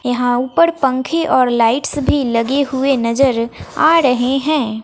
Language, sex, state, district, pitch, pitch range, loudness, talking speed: Hindi, female, Bihar, West Champaran, 260 Hz, 245-285 Hz, -15 LUFS, 150 wpm